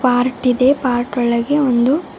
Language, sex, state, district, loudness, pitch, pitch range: Kannada, female, Karnataka, Bidar, -16 LUFS, 250 Hz, 245-265 Hz